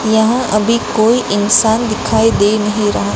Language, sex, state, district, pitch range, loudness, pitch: Hindi, female, Gujarat, Gandhinagar, 210-230 Hz, -13 LUFS, 220 Hz